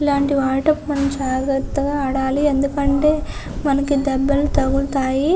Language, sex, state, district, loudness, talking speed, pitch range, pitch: Telugu, female, Andhra Pradesh, Visakhapatnam, -19 LUFS, 90 wpm, 270-285 Hz, 280 Hz